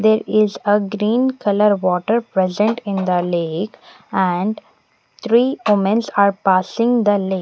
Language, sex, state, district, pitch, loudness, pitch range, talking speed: English, female, Punjab, Pathankot, 205 Hz, -17 LUFS, 190-220 Hz, 140 wpm